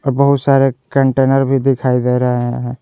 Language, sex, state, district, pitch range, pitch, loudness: Hindi, male, Jharkhand, Garhwa, 125-135 Hz, 135 Hz, -14 LUFS